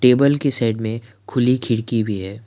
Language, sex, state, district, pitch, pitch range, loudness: Hindi, male, Assam, Kamrup Metropolitan, 115 Hz, 110-125 Hz, -19 LUFS